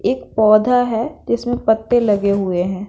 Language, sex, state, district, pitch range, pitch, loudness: Hindi, female, Bihar, Patna, 200-240 Hz, 220 Hz, -16 LUFS